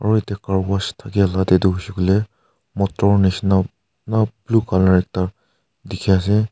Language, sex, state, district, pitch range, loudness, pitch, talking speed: Nagamese, male, Nagaland, Kohima, 95-105 Hz, -19 LUFS, 100 Hz, 165 wpm